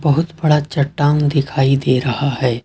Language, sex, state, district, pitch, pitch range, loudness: Hindi, male, Jharkhand, Ranchi, 145 Hz, 135-150 Hz, -16 LUFS